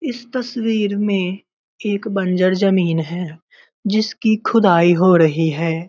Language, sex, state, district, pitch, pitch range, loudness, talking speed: Hindi, male, Bihar, Muzaffarpur, 195 Hz, 175-215 Hz, -17 LUFS, 120 wpm